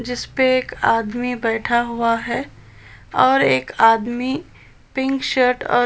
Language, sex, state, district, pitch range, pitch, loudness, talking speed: Hindi, female, Chhattisgarh, Balrampur, 220-250 Hz, 235 Hz, -19 LUFS, 135 wpm